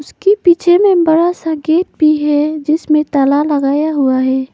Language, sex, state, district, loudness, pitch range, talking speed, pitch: Hindi, female, Arunachal Pradesh, Papum Pare, -12 LUFS, 290-335 Hz, 170 wpm, 305 Hz